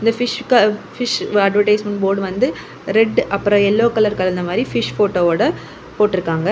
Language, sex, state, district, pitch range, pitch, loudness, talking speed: Tamil, female, Tamil Nadu, Kanyakumari, 195-230 Hz, 210 Hz, -17 LUFS, 140 wpm